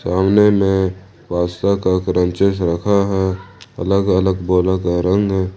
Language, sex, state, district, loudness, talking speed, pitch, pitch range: Hindi, male, Jharkhand, Ranchi, -17 LUFS, 120 wpm, 95 Hz, 90-100 Hz